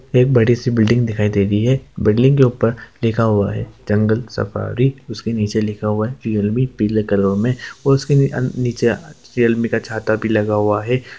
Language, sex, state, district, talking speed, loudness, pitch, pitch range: Hindi, male, Bihar, Jamui, 195 wpm, -17 LUFS, 115 Hz, 105-125 Hz